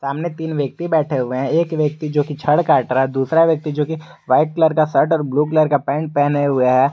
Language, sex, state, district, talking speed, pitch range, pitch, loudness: Hindi, male, Jharkhand, Garhwa, 250 wpm, 140-160 Hz, 150 Hz, -17 LUFS